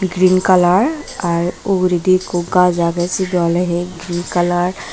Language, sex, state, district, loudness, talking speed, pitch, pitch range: Chakma, female, Tripura, Dhalai, -16 LUFS, 145 wpm, 180 Hz, 175-185 Hz